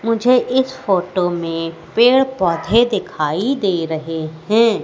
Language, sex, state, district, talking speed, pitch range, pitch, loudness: Hindi, female, Madhya Pradesh, Katni, 125 wpm, 165-240 Hz, 195 Hz, -17 LUFS